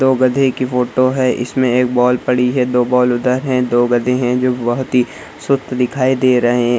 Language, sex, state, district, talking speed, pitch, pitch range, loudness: Hindi, male, Bihar, Saharsa, 205 wpm, 125 Hz, 125-130 Hz, -15 LUFS